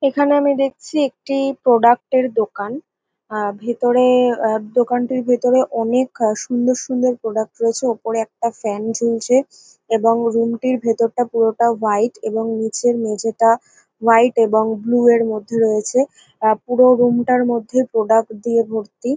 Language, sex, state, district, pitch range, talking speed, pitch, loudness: Bengali, female, West Bengal, North 24 Parganas, 225-250 Hz, 140 wpm, 235 Hz, -17 LUFS